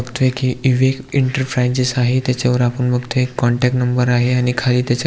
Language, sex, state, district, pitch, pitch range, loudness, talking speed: Marathi, male, Maharashtra, Aurangabad, 125 Hz, 125-130 Hz, -17 LUFS, 190 wpm